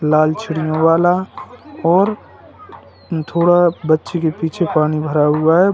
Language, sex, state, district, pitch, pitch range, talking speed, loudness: Hindi, male, Uttar Pradesh, Lalitpur, 165 Hz, 155-175 Hz, 125 wpm, -16 LUFS